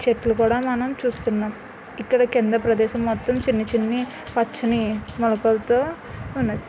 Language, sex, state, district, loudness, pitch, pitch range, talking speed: Telugu, female, Andhra Pradesh, Krishna, -22 LUFS, 235 Hz, 225-245 Hz, 110 wpm